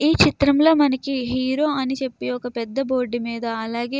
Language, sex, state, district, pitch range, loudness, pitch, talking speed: Telugu, female, Andhra Pradesh, Krishna, 240-280 Hz, -21 LUFS, 260 Hz, 180 wpm